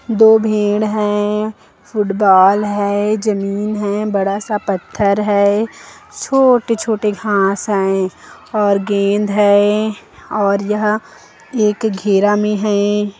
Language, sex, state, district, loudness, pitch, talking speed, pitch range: Hindi, female, Chhattisgarh, Kabirdham, -15 LUFS, 210 Hz, 110 wpm, 200-215 Hz